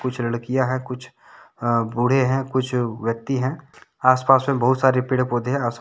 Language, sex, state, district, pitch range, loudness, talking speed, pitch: Hindi, male, Jharkhand, Deoghar, 120-130 Hz, -21 LUFS, 185 wpm, 130 Hz